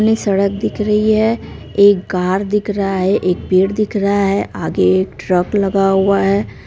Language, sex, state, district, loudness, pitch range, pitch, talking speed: Maithili, female, Bihar, Supaul, -15 LUFS, 190-210 Hz, 200 Hz, 180 wpm